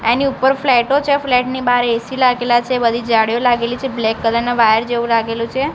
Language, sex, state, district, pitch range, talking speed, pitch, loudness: Gujarati, female, Gujarat, Gandhinagar, 230-260 Hz, 220 wpm, 240 Hz, -15 LUFS